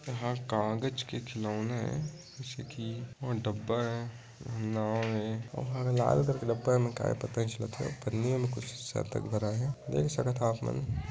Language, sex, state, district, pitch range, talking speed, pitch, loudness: Chhattisgarhi, male, Chhattisgarh, Korba, 110-130 Hz, 185 wpm, 120 Hz, -33 LUFS